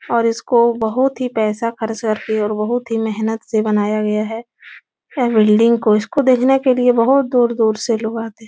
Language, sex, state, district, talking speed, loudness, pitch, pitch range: Hindi, female, Uttar Pradesh, Etah, 205 wpm, -16 LUFS, 225 Hz, 215-245 Hz